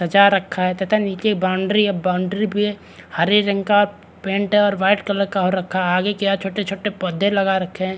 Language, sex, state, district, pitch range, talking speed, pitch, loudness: Hindi, male, Chhattisgarh, Rajnandgaon, 185-205 Hz, 235 wpm, 195 Hz, -19 LUFS